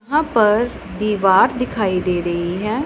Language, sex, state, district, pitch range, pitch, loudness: Hindi, female, Punjab, Pathankot, 185-240 Hz, 210 Hz, -18 LUFS